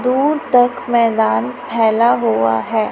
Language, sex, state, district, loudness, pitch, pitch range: Hindi, female, Chhattisgarh, Raipur, -15 LUFS, 230 Hz, 190-245 Hz